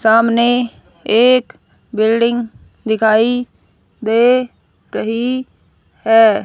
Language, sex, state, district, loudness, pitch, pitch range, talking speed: Hindi, female, Haryana, Rohtak, -14 LUFS, 230 Hz, 225-245 Hz, 65 wpm